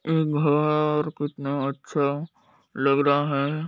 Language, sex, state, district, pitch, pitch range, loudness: Hindi, male, Chhattisgarh, Balrampur, 145 Hz, 140-150 Hz, -24 LUFS